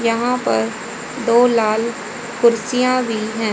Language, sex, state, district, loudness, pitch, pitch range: Hindi, female, Haryana, Rohtak, -18 LUFS, 235 Hz, 220-245 Hz